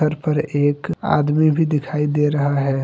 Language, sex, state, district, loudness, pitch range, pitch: Hindi, male, Jharkhand, Deoghar, -19 LUFS, 145-155 Hz, 150 Hz